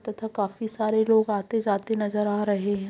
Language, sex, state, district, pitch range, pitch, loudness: Hindi, female, Bihar, Jamui, 205-220 Hz, 210 Hz, -25 LUFS